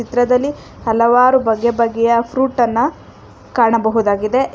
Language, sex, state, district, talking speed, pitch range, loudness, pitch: Kannada, female, Karnataka, Bangalore, 90 wpm, 230-250 Hz, -15 LUFS, 235 Hz